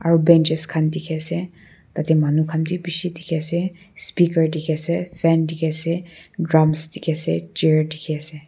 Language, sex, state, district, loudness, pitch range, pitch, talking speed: Nagamese, female, Nagaland, Kohima, -21 LUFS, 155-170 Hz, 160 Hz, 175 wpm